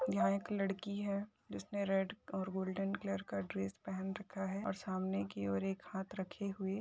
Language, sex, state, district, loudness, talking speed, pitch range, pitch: Hindi, female, Maharashtra, Nagpur, -40 LUFS, 195 wpm, 185-195 Hz, 190 Hz